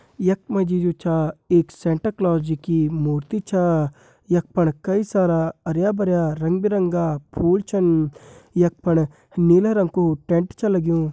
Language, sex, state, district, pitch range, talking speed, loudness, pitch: Garhwali, male, Uttarakhand, Tehri Garhwal, 160-190 Hz, 155 wpm, -21 LUFS, 175 Hz